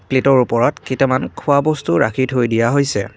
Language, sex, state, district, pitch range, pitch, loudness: Assamese, male, Assam, Kamrup Metropolitan, 115-135 Hz, 130 Hz, -16 LUFS